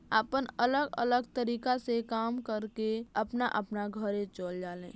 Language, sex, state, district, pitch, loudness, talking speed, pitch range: Bhojpuri, female, Uttar Pradesh, Gorakhpur, 225 Hz, -33 LUFS, 135 wpm, 210-245 Hz